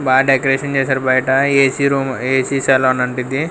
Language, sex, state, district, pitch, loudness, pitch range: Telugu, male, Andhra Pradesh, Sri Satya Sai, 135 Hz, -15 LUFS, 130-135 Hz